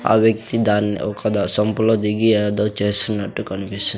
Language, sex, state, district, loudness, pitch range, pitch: Telugu, male, Andhra Pradesh, Sri Satya Sai, -19 LUFS, 105-110 Hz, 105 Hz